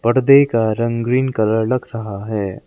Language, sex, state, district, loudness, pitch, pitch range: Hindi, male, Arunachal Pradesh, Lower Dibang Valley, -17 LUFS, 115 Hz, 110-130 Hz